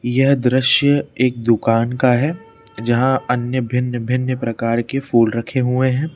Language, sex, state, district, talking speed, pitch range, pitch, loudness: Hindi, male, Madhya Pradesh, Bhopal, 155 wpm, 120-130 Hz, 125 Hz, -17 LUFS